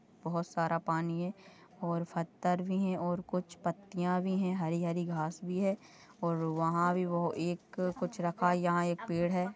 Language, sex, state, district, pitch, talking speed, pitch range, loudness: Hindi, female, Goa, North and South Goa, 175 Hz, 175 wpm, 170-180 Hz, -34 LUFS